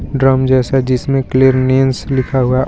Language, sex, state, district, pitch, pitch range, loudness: Hindi, female, Jharkhand, Garhwa, 130 Hz, 130-135 Hz, -13 LUFS